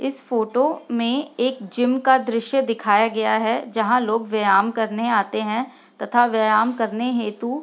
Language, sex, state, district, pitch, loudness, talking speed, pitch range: Hindi, female, Bihar, Sitamarhi, 235 Hz, -20 LUFS, 165 wpm, 220-250 Hz